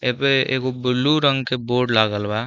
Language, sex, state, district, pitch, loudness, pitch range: Bhojpuri, male, Uttar Pradesh, Deoria, 125 Hz, -19 LUFS, 120-135 Hz